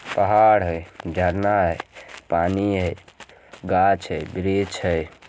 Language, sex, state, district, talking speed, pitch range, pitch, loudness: Hindi, male, Bihar, Jamui, 115 wpm, 85-100 Hz, 95 Hz, -21 LUFS